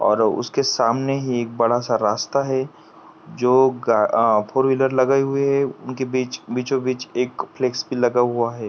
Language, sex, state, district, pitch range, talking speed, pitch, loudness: Hindi, male, Maharashtra, Pune, 120-135 Hz, 180 wpm, 130 Hz, -20 LUFS